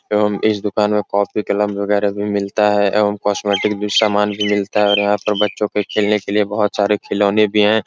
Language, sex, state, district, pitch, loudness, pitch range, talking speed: Hindi, male, Uttar Pradesh, Etah, 105 Hz, -17 LUFS, 100-105 Hz, 230 wpm